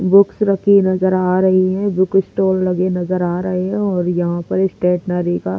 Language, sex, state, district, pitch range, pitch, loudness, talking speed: Hindi, female, Delhi, New Delhi, 180-190 Hz, 185 Hz, -16 LUFS, 195 wpm